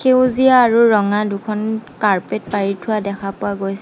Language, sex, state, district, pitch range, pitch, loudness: Assamese, female, Assam, Sonitpur, 200-235 Hz, 210 Hz, -17 LUFS